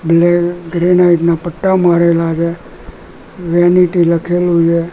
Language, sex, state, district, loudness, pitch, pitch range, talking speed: Gujarati, male, Gujarat, Gandhinagar, -12 LUFS, 175 Hz, 170-175 Hz, 110 wpm